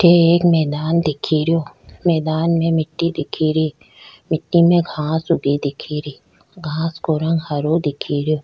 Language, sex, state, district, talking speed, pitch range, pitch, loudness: Rajasthani, female, Rajasthan, Churu, 155 wpm, 150-165 Hz, 160 Hz, -18 LUFS